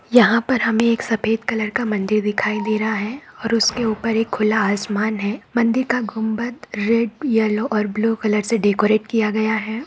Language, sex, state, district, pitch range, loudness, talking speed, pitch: Hindi, female, Bihar, Saharsa, 215-230 Hz, -19 LUFS, 195 wpm, 220 Hz